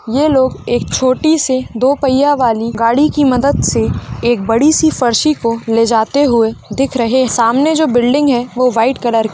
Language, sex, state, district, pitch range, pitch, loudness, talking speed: Hindi, male, Rajasthan, Nagaur, 230-280 Hz, 255 Hz, -13 LUFS, 200 wpm